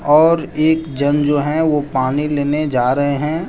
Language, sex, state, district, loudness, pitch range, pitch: Hindi, male, Jharkhand, Deoghar, -16 LUFS, 145-155 Hz, 150 Hz